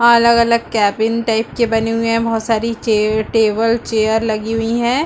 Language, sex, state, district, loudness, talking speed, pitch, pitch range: Hindi, female, Chhattisgarh, Bastar, -15 LUFS, 200 wpm, 225 Hz, 220-235 Hz